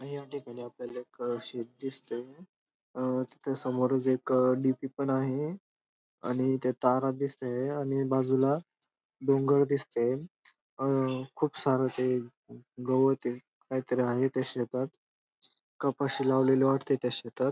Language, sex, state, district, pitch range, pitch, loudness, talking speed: Marathi, male, Maharashtra, Dhule, 125-135 Hz, 130 Hz, -30 LUFS, 125 wpm